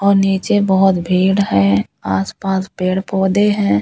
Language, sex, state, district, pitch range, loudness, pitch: Hindi, female, Delhi, New Delhi, 175-195 Hz, -15 LUFS, 190 Hz